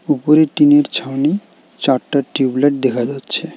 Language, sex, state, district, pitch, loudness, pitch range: Bengali, male, West Bengal, Alipurduar, 145 Hz, -15 LUFS, 135-150 Hz